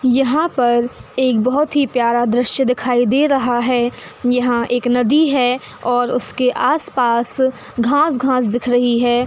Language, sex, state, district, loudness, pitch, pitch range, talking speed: Hindi, female, Uttar Pradesh, Hamirpur, -16 LUFS, 250 Hz, 245-265 Hz, 140 wpm